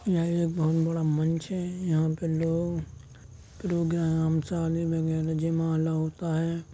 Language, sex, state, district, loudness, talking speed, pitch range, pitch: Hindi, male, Uttar Pradesh, Jalaun, -28 LUFS, 135 wpm, 160-170 Hz, 165 Hz